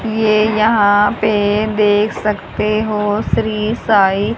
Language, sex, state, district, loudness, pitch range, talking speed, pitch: Hindi, male, Haryana, Charkhi Dadri, -15 LUFS, 205-215 Hz, 110 wpm, 215 Hz